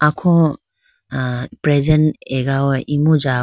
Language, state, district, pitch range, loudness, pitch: Idu Mishmi, Arunachal Pradesh, Lower Dibang Valley, 135-155 Hz, -17 LUFS, 150 Hz